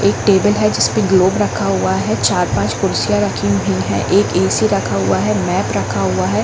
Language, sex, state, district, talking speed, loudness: Hindi, female, Chhattisgarh, Bilaspur, 205 wpm, -15 LUFS